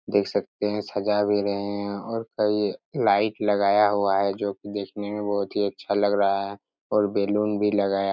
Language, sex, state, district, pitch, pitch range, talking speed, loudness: Hindi, male, Chhattisgarh, Raigarh, 100 Hz, 100-105 Hz, 200 wpm, -24 LUFS